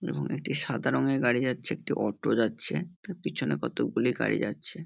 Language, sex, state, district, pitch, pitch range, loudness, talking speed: Bengali, male, West Bengal, North 24 Parganas, 135 Hz, 125-170 Hz, -29 LUFS, 175 wpm